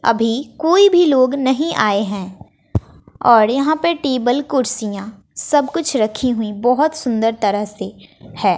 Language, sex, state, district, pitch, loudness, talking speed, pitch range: Hindi, female, Bihar, West Champaran, 250 Hz, -16 LUFS, 145 wpm, 220-290 Hz